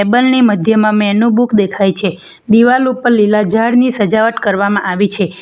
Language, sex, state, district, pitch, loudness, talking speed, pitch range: Gujarati, female, Gujarat, Valsad, 215 Hz, -12 LUFS, 165 wpm, 200-235 Hz